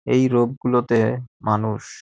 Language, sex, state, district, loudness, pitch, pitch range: Bengali, male, West Bengal, Dakshin Dinajpur, -21 LUFS, 120 Hz, 110-125 Hz